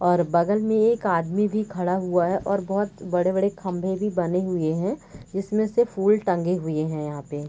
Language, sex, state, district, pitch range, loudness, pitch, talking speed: Hindi, female, Bihar, Gopalganj, 175-205 Hz, -24 LUFS, 185 Hz, 215 wpm